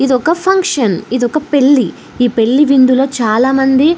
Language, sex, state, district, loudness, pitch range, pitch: Telugu, female, Telangana, Karimnagar, -12 LUFS, 245-290 Hz, 270 Hz